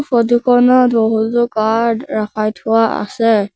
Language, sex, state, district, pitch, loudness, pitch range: Assamese, male, Assam, Sonitpur, 225 Hz, -14 LUFS, 220-240 Hz